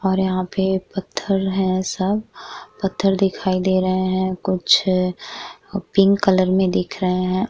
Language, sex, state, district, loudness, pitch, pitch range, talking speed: Hindi, female, Uttar Pradesh, Jyotiba Phule Nagar, -20 LUFS, 190 Hz, 185-195 Hz, 145 wpm